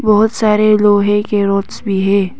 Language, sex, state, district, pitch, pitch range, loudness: Hindi, female, Arunachal Pradesh, Papum Pare, 205 Hz, 200-215 Hz, -13 LUFS